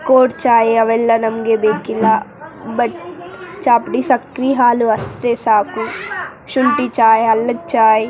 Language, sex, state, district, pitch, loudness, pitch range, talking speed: Kannada, female, Karnataka, Raichur, 235 Hz, -15 LUFS, 225-260 Hz, 125 wpm